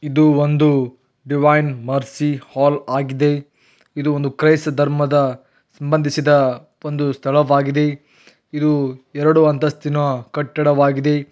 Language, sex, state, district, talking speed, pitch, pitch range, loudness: Kannada, male, Karnataka, Belgaum, 95 wpm, 145 Hz, 140-150 Hz, -17 LUFS